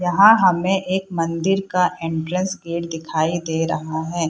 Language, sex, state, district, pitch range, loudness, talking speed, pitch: Hindi, female, Bihar, Purnia, 165-185 Hz, -20 LUFS, 155 wpm, 170 Hz